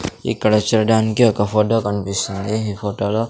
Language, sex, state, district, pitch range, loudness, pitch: Telugu, male, Andhra Pradesh, Sri Satya Sai, 100-110 Hz, -18 LUFS, 105 Hz